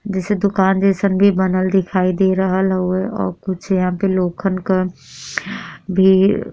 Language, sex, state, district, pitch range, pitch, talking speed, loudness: Bhojpuri, female, Uttar Pradesh, Deoria, 185-195 Hz, 190 Hz, 155 wpm, -17 LUFS